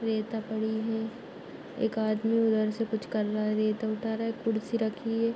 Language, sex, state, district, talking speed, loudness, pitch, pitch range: Hindi, female, Jharkhand, Jamtara, 200 wpm, -30 LUFS, 220 Hz, 215-225 Hz